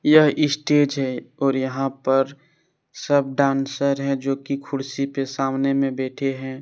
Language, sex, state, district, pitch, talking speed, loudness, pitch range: Hindi, male, Jharkhand, Deoghar, 135 Hz, 155 wpm, -22 LUFS, 135-140 Hz